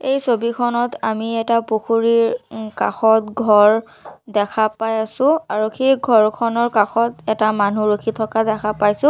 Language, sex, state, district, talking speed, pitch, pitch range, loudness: Assamese, female, Assam, Sonitpur, 130 wpm, 225 Hz, 215-235 Hz, -18 LUFS